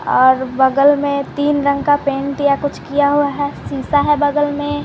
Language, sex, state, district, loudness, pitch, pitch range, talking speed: Hindi, female, Bihar, Patna, -16 LUFS, 285 Hz, 280-290 Hz, 195 wpm